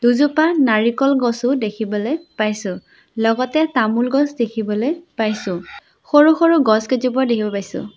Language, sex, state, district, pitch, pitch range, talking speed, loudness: Assamese, female, Assam, Sonitpur, 245 Hz, 220-290 Hz, 120 wpm, -17 LUFS